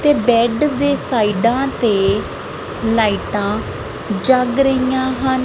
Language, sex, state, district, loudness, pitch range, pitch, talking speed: Punjabi, female, Punjab, Kapurthala, -17 LUFS, 220-265 Hz, 245 Hz, 100 wpm